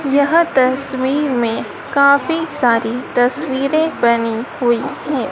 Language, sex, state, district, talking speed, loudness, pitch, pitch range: Hindi, female, Madhya Pradesh, Dhar, 100 wpm, -16 LUFS, 265 Hz, 240-285 Hz